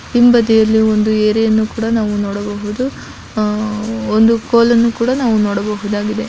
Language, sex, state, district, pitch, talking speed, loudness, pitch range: Kannada, female, Karnataka, Dakshina Kannada, 220 Hz, 135 wpm, -14 LUFS, 210-230 Hz